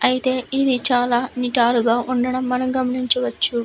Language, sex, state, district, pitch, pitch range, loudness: Telugu, female, Andhra Pradesh, Visakhapatnam, 250 Hz, 245-255 Hz, -19 LUFS